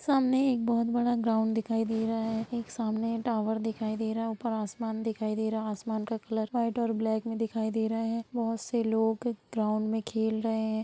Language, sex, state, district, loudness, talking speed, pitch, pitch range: Hindi, female, Bihar, Sitamarhi, -30 LUFS, 225 wpm, 225 Hz, 220-230 Hz